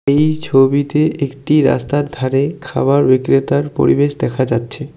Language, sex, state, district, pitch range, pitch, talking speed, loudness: Bengali, male, West Bengal, Cooch Behar, 135-145 Hz, 140 Hz, 120 wpm, -15 LUFS